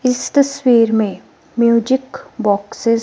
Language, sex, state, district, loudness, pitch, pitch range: Hindi, female, Himachal Pradesh, Shimla, -16 LUFS, 235 Hz, 230-265 Hz